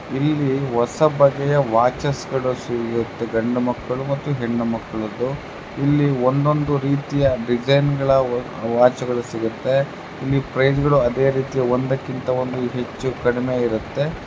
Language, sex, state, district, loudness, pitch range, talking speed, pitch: Kannada, male, Karnataka, Chamarajanagar, -20 LUFS, 120-140 Hz, 100 wpm, 130 Hz